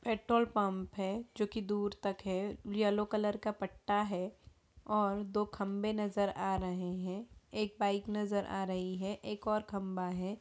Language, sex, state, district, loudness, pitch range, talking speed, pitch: Hindi, female, Bihar, Gaya, -36 LUFS, 195-210 Hz, 175 wpm, 205 Hz